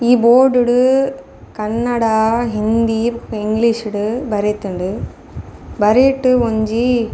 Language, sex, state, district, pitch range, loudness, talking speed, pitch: Tulu, female, Karnataka, Dakshina Kannada, 210-245 Hz, -15 LUFS, 85 wpm, 230 Hz